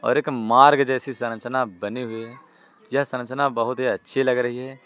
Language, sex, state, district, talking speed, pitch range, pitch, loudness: Hindi, male, Uttar Pradesh, Lucknow, 200 wpm, 120-135 Hz, 125 Hz, -22 LUFS